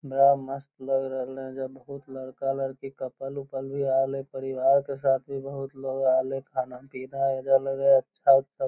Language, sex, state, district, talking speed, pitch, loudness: Magahi, male, Bihar, Lakhisarai, 165 wpm, 135 Hz, -27 LUFS